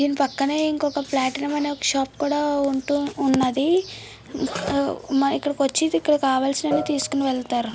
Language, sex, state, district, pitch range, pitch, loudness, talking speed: Telugu, female, Andhra Pradesh, Srikakulam, 270-295 Hz, 280 Hz, -22 LUFS, 100 wpm